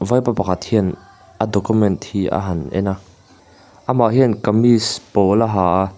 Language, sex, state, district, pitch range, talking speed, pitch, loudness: Mizo, male, Mizoram, Aizawl, 95-110 Hz, 170 wpm, 100 Hz, -17 LUFS